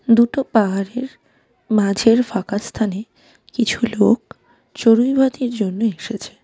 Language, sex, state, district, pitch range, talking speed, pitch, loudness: Bengali, female, West Bengal, Darjeeling, 205-240 Hz, 100 wpm, 230 Hz, -18 LUFS